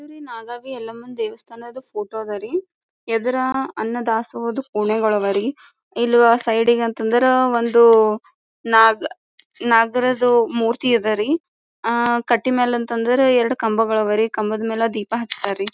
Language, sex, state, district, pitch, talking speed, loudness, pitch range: Kannada, female, Karnataka, Gulbarga, 235 Hz, 135 wpm, -19 LUFS, 225-250 Hz